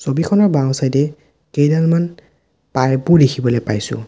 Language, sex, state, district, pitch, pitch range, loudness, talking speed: Assamese, male, Assam, Sonitpur, 140 Hz, 130-160 Hz, -16 LUFS, 130 wpm